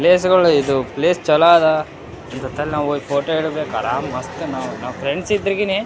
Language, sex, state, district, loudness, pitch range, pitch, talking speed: Kannada, male, Karnataka, Raichur, -18 LUFS, 145-180 Hz, 155 Hz, 155 wpm